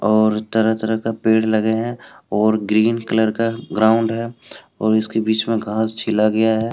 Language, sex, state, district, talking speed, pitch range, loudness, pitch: Hindi, male, Jharkhand, Deoghar, 185 wpm, 110-115 Hz, -18 LUFS, 110 Hz